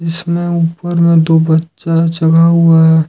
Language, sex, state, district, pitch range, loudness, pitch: Hindi, male, Jharkhand, Ranchi, 160-170 Hz, -11 LUFS, 165 Hz